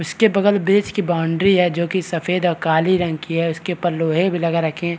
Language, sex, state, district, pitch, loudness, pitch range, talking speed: Hindi, male, Chhattisgarh, Rajnandgaon, 175 Hz, -18 LUFS, 165-185 Hz, 265 wpm